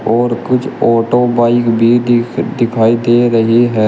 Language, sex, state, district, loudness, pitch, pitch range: Hindi, male, Uttar Pradesh, Shamli, -12 LUFS, 120 Hz, 115-120 Hz